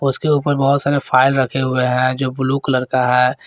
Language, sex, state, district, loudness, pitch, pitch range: Hindi, male, Jharkhand, Garhwa, -16 LUFS, 130 Hz, 130-140 Hz